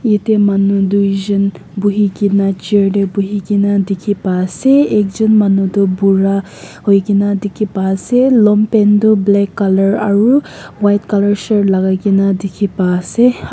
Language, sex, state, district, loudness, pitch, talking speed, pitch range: Nagamese, female, Nagaland, Kohima, -13 LUFS, 200 Hz, 150 wpm, 195-210 Hz